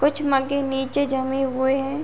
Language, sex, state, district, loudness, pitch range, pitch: Hindi, female, Uttar Pradesh, Muzaffarnagar, -22 LUFS, 265-285 Hz, 270 Hz